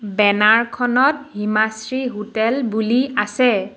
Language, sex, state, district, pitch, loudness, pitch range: Assamese, female, Assam, Sonitpur, 220 Hz, -18 LUFS, 210-250 Hz